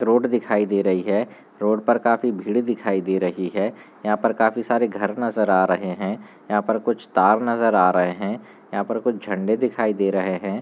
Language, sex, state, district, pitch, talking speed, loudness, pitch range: Hindi, male, Bihar, Gaya, 105 Hz, 215 wpm, -21 LUFS, 95-115 Hz